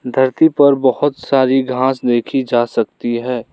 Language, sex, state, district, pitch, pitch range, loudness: Hindi, male, Arunachal Pradesh, Lower Dibang Valley, 130 Hz, 125-135 Hz, -15 LUFS